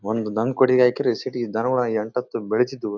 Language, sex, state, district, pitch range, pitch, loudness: Kannada, male, Karnataka, Bellary, 110-125 Hz, 120 Hz, -22 LUFS